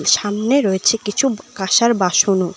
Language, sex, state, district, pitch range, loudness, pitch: Bengali, female, West Bengal, Cooch Behar, 190-230 Hz, -16 LUFS, 205 Hz